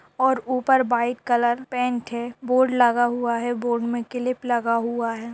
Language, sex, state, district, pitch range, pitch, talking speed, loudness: Hindi, female, Bihar, Darbhanga, 235-250 Hz, 240 Hz, 180 wpm, -22 LUFS